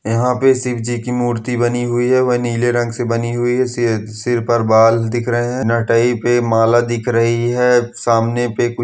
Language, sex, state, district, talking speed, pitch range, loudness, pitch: Hindi, male, Andhra Pradesh, Anantapur, 205 wpm, 115-120 Hz, -16 LUFS, 120 Hz